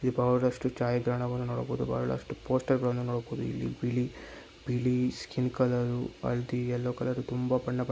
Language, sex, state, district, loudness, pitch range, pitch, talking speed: Kannada, male, Karnataka, Raichur, -31 LUFS, 120-125 Hz, 125 Hz, 130 wpm